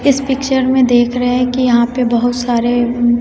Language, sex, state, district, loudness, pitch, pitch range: Hindi, female, Bihar, West Champaran, -13 LUFS, 245 Hz, 240-255 Hz